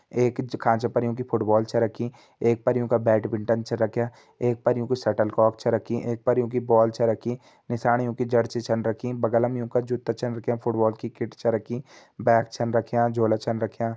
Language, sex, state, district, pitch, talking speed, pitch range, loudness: Hindi, male, Uttarakhand, Tehri Garhwal, 115 Hz, 205 wpm, 115-120 Hz, -25 LUFS